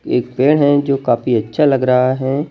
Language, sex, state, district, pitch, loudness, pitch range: Hindi, male, Madhya Pradesh, Bhopal, 135 Hz, -15 LUFS, 125-145 Hz